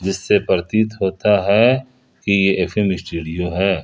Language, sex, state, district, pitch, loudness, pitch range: Hindi, male, Jharkhand, Ranchi, 95 Hz, -17 LUFS, 90-105 Hz